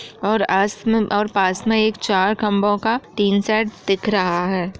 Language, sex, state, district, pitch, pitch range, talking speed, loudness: Hindi, female, Bihar, Jahanabad, 205 Hz, 195-220 Hz, 190 wpm, -19 LUFS